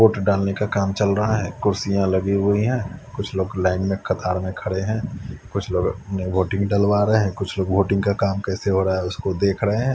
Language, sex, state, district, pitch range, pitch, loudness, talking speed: Hindi, male, Haryana, Charkhi Dadri, 95-105 Hz, 100 Hz, -22 LUFS, 235 wpm